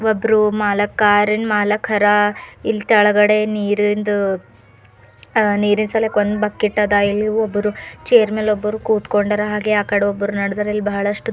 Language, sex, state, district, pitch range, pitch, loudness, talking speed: Kannada, female, Karnataka, Bidar, 205-215 Hz, 210 Hz, -17 LUFS, 145 wpm